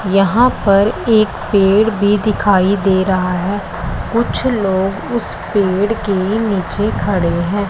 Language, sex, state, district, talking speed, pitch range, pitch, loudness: Hindi, female, Punjab, Pathankot, 130 wpm, 190-215 Hz, 200 Hz, -15 LUFS